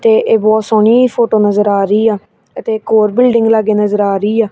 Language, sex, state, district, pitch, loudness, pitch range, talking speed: Punjabi, female, Punjab, Kapurthala, 220 Hz, -11 LUFS, 210-230 Hz, 225 wpm